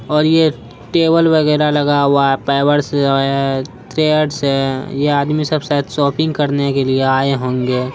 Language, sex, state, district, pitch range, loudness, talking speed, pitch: Hindi, female, Bihar, Araria, 135-150 Hz, -15 LUFS, 160 wpm, 140 Hz